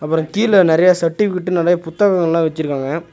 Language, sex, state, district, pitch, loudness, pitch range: Tamil, male, Tamil Nadu, Nilgiris, 170 Hz, -15 LUFS, 160-185 Hz